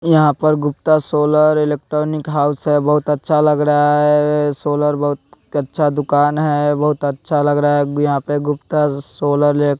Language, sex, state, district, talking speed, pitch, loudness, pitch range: Hindi, male, Bihar, West Champaran, 165 wpm, 150 Hz, -16 LUFS, 145-150 Hz